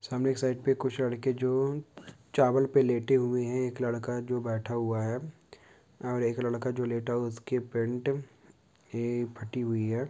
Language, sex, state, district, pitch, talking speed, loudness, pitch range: Hindi, male, Uttar Pradesh, Gorakhpur, 125 Hz, 170 wpm, -30 LUFS, 120-130 Hz